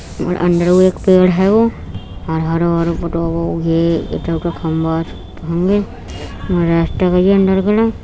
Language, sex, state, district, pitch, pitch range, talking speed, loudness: Hindi, female, Uttar Pradesh, Etah, 170 Hz, 165-185 Hz, 90 wpm, -15 LUFS